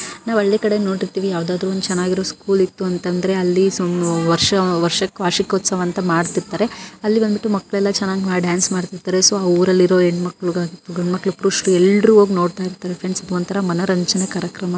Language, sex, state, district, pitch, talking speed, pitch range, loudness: Kannada, female, Karnataka, Gulbarga, 185 Hz, 135 wpm, 180-195 Hz, -18 LUFS